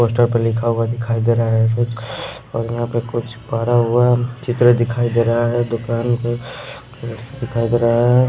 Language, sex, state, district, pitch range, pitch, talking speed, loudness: Hindi, male, Bihar, Patna, 115-120 Hz, 120 Hz, 190 wpm, -18 LUFS